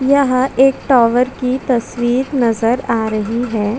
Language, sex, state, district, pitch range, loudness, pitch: Hindi, female, Chhattisgarh, Bastar, 230-260 Hz, -15 LUFS, 250 Hz